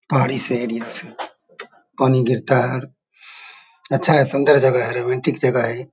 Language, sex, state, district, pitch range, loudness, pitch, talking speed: Hindi, male, Bihar, Saharsa, 125-135 Hz, -18 LUFS, 130 Hz, 140 wpm